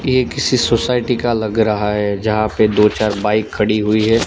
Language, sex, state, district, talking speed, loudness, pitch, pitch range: Hindi, male, Gujarat, Gandhinagar, 210 wpm, -16 LUFS, 110 Hz, 105-120 Hz